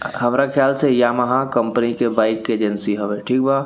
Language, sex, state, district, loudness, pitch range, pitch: Bhojpuri, male, Bihar, East Champaran, -18 LUFS, 110-135 Hz, 120 Hz